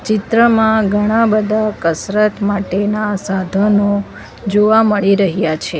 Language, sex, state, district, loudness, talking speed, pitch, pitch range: Gujarati, female, Gujarat, Valsad, -14 LUFS, 105 wpm, 205 Hz, 195-215 Hz